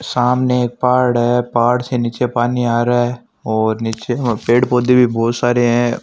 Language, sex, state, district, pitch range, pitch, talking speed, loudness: Marwari, male, Rajasthan, Nagaur, 120-125 Hz, 120 Hz, 190 wpm, -16 LUFS